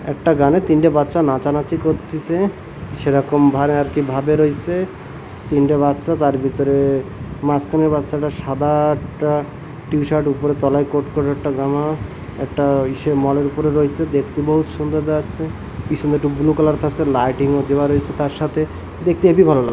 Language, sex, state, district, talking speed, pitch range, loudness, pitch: Bengali, male, Odisha, Malkangiri, 150 wpm, 140-155 Hz, -18 LUFS, 145 Hz